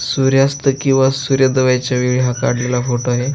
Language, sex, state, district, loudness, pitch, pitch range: Marathi, male, Maharashtra, Aurangabad, -15 LUFS, 130 Hz, 125-135 Hz